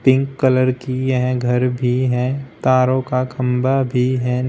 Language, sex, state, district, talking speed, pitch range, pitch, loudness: Hindi, male, Uttar Pradesh, Shamli, 160 wpm, 125-130 Hz, 130 Hz, -18 LUFS